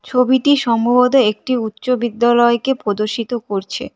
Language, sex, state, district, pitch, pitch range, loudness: Bengali, female, West Bengal, Cooch Behar, 240 Hz, 230-255 Hz, -16 LUFS